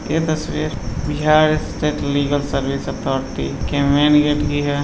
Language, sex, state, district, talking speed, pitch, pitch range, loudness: Hindi, male, Uttar Pradesh, Deoria, 150 wpm, 145 Hz, 140-155 Hz, -19 LUFS